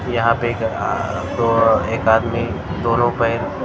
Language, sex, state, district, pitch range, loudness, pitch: Hindi, male, Maharashtra, Mumbai Suburban, 100-115 Hz, -18 LUFS, 115 Hz